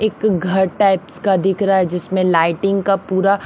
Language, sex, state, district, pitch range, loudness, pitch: Hindi, female, Haryana, Rohtak, 185-195 Hz, -17 LUFS, 190 Hz